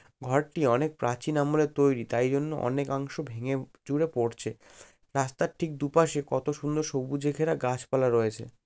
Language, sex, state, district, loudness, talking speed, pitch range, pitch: Bengali, male, West Bengal, Malda, -29 LUFS, 145 wpm, 125-150 Hz, 140 Hz